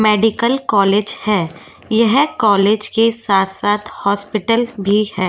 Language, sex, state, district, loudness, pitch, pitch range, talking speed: Hindi, female, Goa, North and South Goa, -15 LUFS, 210 Hz, 200-225 Hz, 125 wpm